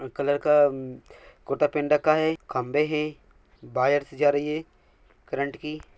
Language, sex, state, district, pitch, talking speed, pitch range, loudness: Hindi, male, Bihar, Purnia, 145 Hz, 150 wpm, 135-150 Hz, -25 LUFS